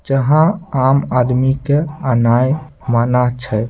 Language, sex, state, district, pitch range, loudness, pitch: Maithili, male, Bihar, Samastipur, 125-145 Hz, -15 LUFS, 130 Hz